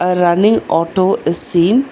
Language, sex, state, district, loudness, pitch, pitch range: English, female, Telangana, Hyderabad, -14 LUFS, 180 Hz, 175-205 Hz